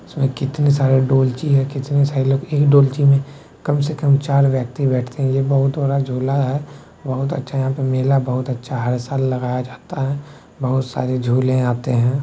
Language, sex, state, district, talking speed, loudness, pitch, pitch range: Maithili, male, Bihar, Bhagalpur, 195 wpm, -18 LUFS, 135 Hz, 130-140 Hz